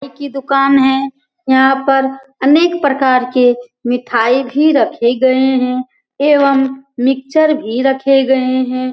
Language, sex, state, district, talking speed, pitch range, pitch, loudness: Hindi, female, Bihar, Lakhisarai, 130 wpm, 255-275 Hz, 265 Hz, -13 LUFS